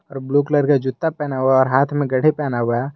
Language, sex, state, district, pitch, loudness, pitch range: Hindi, male, Jharkhand, Garhwa, 140 Hz, -18 LUFS, 130-145 Hz